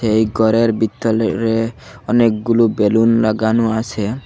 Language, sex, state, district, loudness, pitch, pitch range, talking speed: Bengali, male, Assam, Hailakandi, -16 LUFS, 115 Hz, 110-115 Hz, 100 wpm